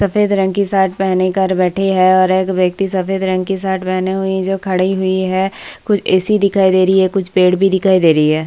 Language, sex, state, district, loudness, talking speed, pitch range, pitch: Hindi, female, Bihar, Kishanganj, -14 LUFS, 250 wpm, 185-195 Hz, 190 Hz